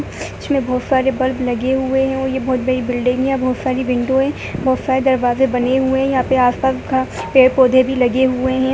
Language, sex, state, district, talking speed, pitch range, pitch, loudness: Hindi, female, Uttar Pradesh, Jyotiba Phule Nagar, 235 wpm, 255-265 Hz, 260 Hz, -16 LUFS